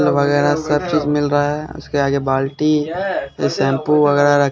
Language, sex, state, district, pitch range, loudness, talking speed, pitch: Hindi, male, Bihar, Katihar, 140-150 Hz, -17 LUFS, 160 wpm, 145 Hz